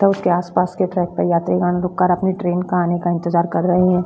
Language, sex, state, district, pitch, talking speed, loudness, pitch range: Hindi, female, Bihar, Vaishali, 180 Hz, 265 wpm, -18 LUFS, 175-180 Hz